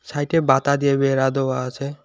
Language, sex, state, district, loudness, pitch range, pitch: Bengali, male, West Bengal, Alipurduar, -20 LUFS, 135-140 Hz, 140 Hz